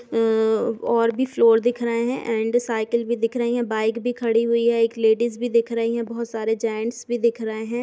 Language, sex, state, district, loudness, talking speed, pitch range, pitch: Hindi, female, Uttar Pradesh, Jalaun, -22 LUFS, 240 wpm, 225-235 Hz, 230 Hz